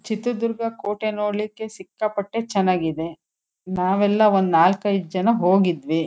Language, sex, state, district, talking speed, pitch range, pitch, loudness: Kannada, female, Karnataka, Shimoga, 120 wpm, 180-215 Hz, 200 Hz, -21 LUFS